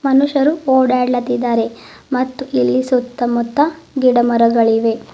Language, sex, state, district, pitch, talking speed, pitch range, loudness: Kannada, female, Karnataka, Bidar, 250 Hz, 80 wpm, 235-265 Hz, -15 LUFS